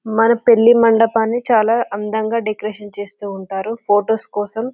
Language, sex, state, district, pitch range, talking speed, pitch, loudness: Telugu, female, Telangana, Karimnagar, 205-230 Hz, 140 wpm, 220 Hz, -16 LUFS